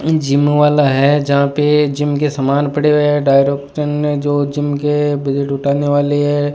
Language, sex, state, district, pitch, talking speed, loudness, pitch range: Hindi, male, Rajasthan, Bikaner, 145 Hz, 185 wpm, -14 LUFS, 140-145 Hz